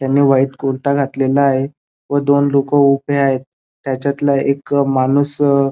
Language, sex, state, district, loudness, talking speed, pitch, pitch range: Marathi, male, Maharashtra, Dhule, -15 LUFS, 135 wpm, 140 Hz, 135-140 Hz